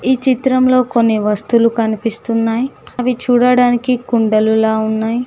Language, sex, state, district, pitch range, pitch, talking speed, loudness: Telugu, female, Telangana, Mahabubabad, 220-250 Hz, 235 Hz, 100 wpm, -14 LUFS